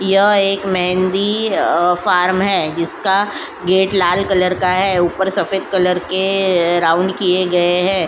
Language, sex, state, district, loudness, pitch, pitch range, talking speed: Hindi, female, Uttar Pradesh, Jyotiba Phule Nagar, -15 LUFS, 185 Hz, 180-195 Hz, 155 wpm